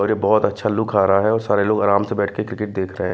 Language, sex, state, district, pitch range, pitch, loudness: Hindi, male, Himachal Pradesh, Shimla, 100-110 Hz, 105 Hz, -19 LUFS